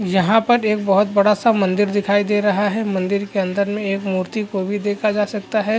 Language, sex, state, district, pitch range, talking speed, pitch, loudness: Hindi, male, Bihar, Araria, 195-210 Hz, 240 wpm, 205 Hz, -18 LUFS